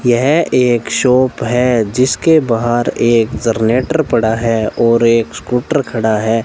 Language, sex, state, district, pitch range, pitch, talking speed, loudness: Hindi, male, Rajasthan, Bikaner, 115-130 Hz, 120 Hz, 140 wpm, -13 LUFS